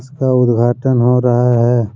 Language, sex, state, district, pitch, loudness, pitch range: Hindi, male, Jharkhand, Deoghar, 125 Hz, -13 LUFS, 120-125 Hz